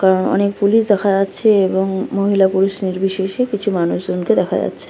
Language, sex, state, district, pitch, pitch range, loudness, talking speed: Bengali, female, West Bengal, Kolkata, 195 Hz, 190-200 Hz, -16 LUFS, 170 wpm